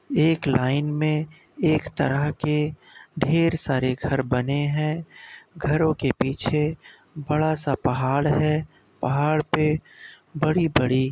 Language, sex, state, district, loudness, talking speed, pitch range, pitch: Hindi, male, Uttar Pradesh, Muzaffarnagar, -23 LUFS, 120 wpm, 140-155 Hz, 150 Hz